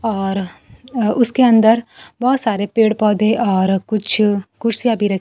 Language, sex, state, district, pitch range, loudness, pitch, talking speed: Hindi, female, Bihar, Kaimur, 205-235 Hz, -15 LUFS, 220 Hz, 140 wpm